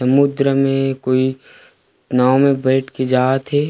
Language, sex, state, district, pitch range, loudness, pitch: Chhattisgarhi, male, Chhattisgarh, Rajnandgaon, 130-135 Hz, -16 LUFS, 135 Hz